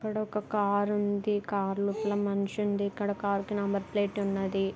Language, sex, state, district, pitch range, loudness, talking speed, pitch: Telugu, female, Andhra Pradesh, Guntur, 200-205 Hz, -30 LUFS, 175 wpm, 205 Hz